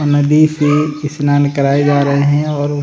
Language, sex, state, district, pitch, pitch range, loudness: Hindi, male, Bihar, Samastipur, 145 Hz, 145-150 Hz, -13 LUFS